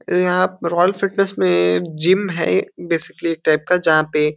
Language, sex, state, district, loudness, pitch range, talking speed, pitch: Hindi, male, Uttar Pradesh, Deoria, -17 LUFS, 155-180 Hz, 180 wpm, 170 Hz